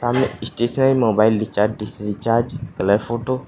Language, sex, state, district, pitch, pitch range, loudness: Hindi, male, Uttar Pradesh, Saharanpur, 115 Hz, 105-120 Hz, -20 LUFS